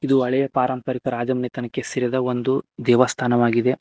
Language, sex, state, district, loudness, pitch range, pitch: Kannada, male, Karnataka, Koppal, -21 LUFS, 125-130 Hz, 125 Hz